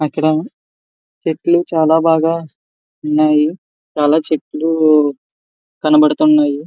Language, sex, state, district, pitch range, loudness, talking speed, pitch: Telugu, male, Andhra Pradesh, Visakhapatnam, 145-160 Hz, -14 LUFS, 70 wpm, 155 Hz